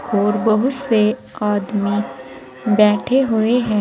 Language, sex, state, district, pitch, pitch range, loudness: Hindi, female, Uttar Pradesh, Saharanpur, 210 Hz, 205-225 Hz, -17 LUFS